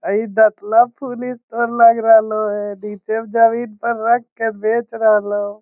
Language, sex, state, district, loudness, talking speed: Magahi, male, Bihar, Lakhisarai, -16 LUFS, 150 wpm